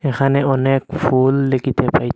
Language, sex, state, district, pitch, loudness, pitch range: Bengali, male, Assam, Hailakandi, 135 Hz, -16 LUFS, 130-140 Hz